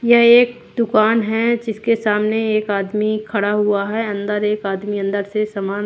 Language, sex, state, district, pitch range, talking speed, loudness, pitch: Hindi, female, Haryana, Jhajjar, 205-225 Hz, 175 wpm, -17 LUFS, 215 Hz